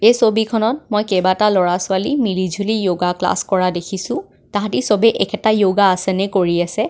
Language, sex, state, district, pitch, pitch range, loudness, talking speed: Assamese, female, Assam, Kamrup Metropolitan, 200 Hz, 185-220 Hz, -17 LUFS, 155 wpm